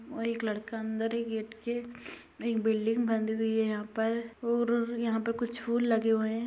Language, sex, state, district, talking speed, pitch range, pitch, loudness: Hindi, female, Bihar, Sitamarhi, 215 wpm, 220-235 Hz, 225 Hz, -31 LUFS